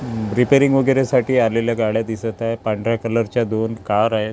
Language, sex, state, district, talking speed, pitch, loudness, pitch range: Marathi, male, Maharashtra, Gondia, 165 wpm, 115 Hz, -19 LUFS, 110-125 Hz